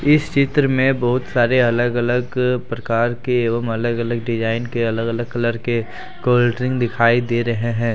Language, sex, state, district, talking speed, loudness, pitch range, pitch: Hindi, male, Jharkhand, Deoghar, 175 wpm, -19 LUFS, 115-125 Hz, 120 Hz